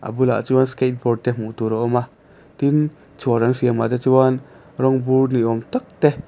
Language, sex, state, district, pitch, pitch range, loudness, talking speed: Mizo, male, Mizoram, Aizawl, 130 Hz, 120-130 Hz, -19 LUFS, 230 wpm